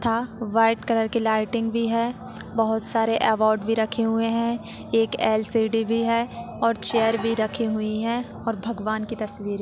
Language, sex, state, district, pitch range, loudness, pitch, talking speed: Hindi, female, Chhattisgarh, Jashpur, 220-230 Hz, -22 LUFS, 225 Hz, 175 wpm